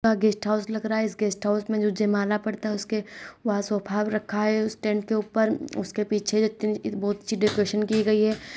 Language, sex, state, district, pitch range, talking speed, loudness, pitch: Hindi, female, Uttar Pradesh, Hamirpur, 210-215 Hz, 225 wpm, -25 LUFS, 215 Hz